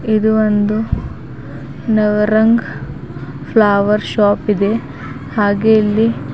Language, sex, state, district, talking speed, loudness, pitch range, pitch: Kannada, female, Karnataka, Bidar, 85 wpm, -14 LUFS, 150-220 Hz, 210 Hz